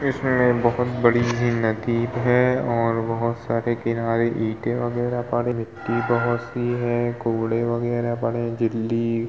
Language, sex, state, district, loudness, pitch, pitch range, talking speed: Hindi, male, Uttar Pradesh, Hamirpur, -22 LUFS, 120 Hz, 115-120 Hz, 150 wpm